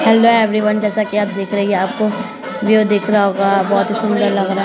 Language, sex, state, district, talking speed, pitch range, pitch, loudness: Hindi, male, Bihar, Sitamarhi, 255 wpm, 200-215 Hz, 210 Hz, -15 LUFS